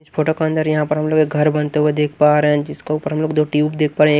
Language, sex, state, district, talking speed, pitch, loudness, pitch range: Hindi, male, Maharashtra, Washim, 355 wpm, 150 Hz, -17 LUFS, 150-155 Hz